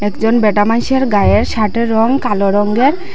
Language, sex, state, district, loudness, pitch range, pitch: Bengali, female, Assam, Hailakandi, -13 LUFS, 205-245 Hz, 225 Hz